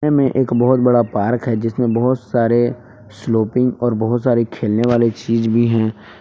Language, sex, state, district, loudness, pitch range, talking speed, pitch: Hindi, male, Jharkhand, Palamu, -17 LUFS, 115-125 Hz, 175 wpm, 120 Hz